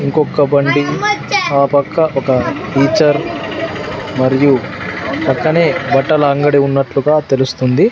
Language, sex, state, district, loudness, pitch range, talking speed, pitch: Telugu, male, Andhra Pradesh, Sri Satya Sai, -14 LUFS, 135-150 Hz, 100 wpm, 140 Hz